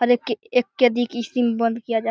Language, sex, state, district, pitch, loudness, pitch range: Hindi, male, Bihar, Begusarai, 240 Hz, -21 LUFS, 230-245 Hz